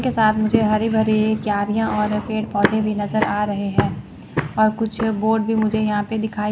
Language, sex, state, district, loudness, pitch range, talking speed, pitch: Hindi, female, Chandigarh, Chandigarh, -20 LUFS, 210-220 Hz, 205 wpm, 215 Hz